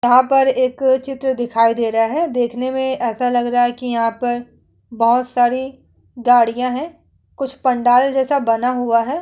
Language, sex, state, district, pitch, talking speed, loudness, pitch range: Hindi, female, Uttar Pradesh, Muzaffarnagar, 250 Hz, 175 wpm, -17 LUFS, 240-265 Hz